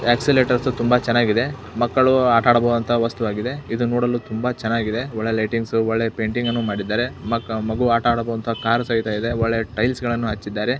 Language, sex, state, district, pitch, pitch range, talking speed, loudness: Kannada, male, Karnataka, Belgaum, 115 Hz, 115-120 Hz, 165 wpm, -20 LUFS